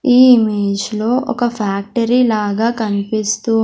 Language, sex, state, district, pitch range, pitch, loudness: Telugu, female, Andhra Pradesh, Sri Satya Sai, 210-240 Hz, 220 Hz, -15 LUFS